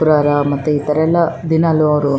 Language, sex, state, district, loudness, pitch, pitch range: Kannada, female, Karnataka, Raichur, -15 LUFS, 150 Hz, 145-160 Hz